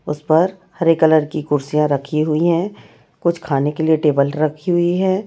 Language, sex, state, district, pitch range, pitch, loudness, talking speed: Hindi, female, Chhattisgarh, Raipur, 150-170 Hz, 155 Hz, -17 LUFS, 195 wpm